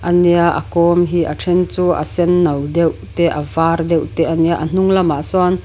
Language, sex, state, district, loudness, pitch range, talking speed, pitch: Mizo, female, Mizoram, Aizawl, -15 LUFS, 165-175 Hz, 245 wpm, 170 Hz